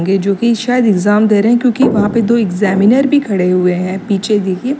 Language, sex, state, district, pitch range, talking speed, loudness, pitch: Hindi, female, Uttar Pradesh, Lalitpur, 195-235 Hz, 240 wpm, -12 LUFS, 210 Hz